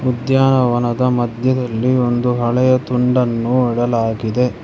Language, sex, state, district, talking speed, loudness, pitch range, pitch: Kannada, male, Karnataka, Bangalore, 80 wpm, -16 LUFS, 120-125 Hz, 125 Hz